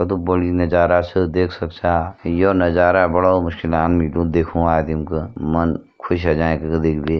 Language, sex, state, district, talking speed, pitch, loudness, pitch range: Hindi, male, Uttarakhand, Uttarkashi, 190 wpm, 85 Hz, -18 LUFS, 80-90 Hz